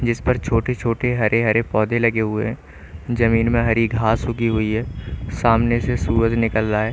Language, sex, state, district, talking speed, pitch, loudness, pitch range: Hindi, male, Chandigarh, Chandigarh, 200 wpm, 115 Hz, -19 LUFS, 110-115 Hz